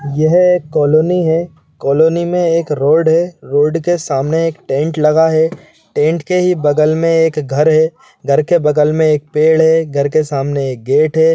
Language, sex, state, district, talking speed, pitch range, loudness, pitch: Hindi, male, Chhattisgarh, Bilaspur, 195 wpm, 150-165 Hz, -13 LUFS, 155 Hz